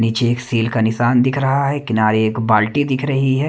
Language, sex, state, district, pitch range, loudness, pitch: Hindi, male, Himachal Pradesh, Shimla, 110-135 Hz, -17 LUFS, 120 Hz